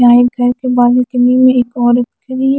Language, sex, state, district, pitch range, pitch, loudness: Hindi, female, Himachal Pradesh, Shimla, 245-255 Hz, 245 Hz, -12 LUFS